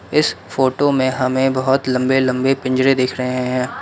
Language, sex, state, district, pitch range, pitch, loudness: Hindi, male, Assam, Kamrup Metropolitan, 130-135 Hz, 130 Hz, -17 LUFS